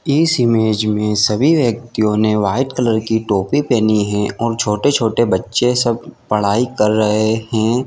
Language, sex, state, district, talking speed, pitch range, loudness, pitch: Hindi, male, Chhattisgarh, Bilaspur, 135 wpm, 105-120 Hz, -16 LUFS, 110 Hz